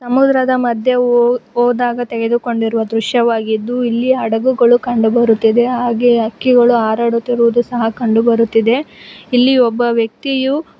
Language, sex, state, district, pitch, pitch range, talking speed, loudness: Kannada, female, Karnataka, Bangalore, 240 Hz, 230-245 Hz, 95 wpm, -14 LUFS